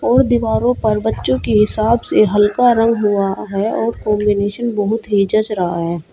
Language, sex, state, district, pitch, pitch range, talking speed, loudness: Hindi, female, Uttar Pradesh, Shamli, 210 Hz, 200-225 Hz, 175 wpm, -16 LUFS